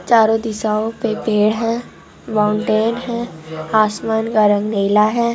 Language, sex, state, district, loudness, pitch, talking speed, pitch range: Hindi, female, Andhra Pradesh, Anantapur, -17 LUFS, 220 Hz, 135 wpm, 210-225 Hz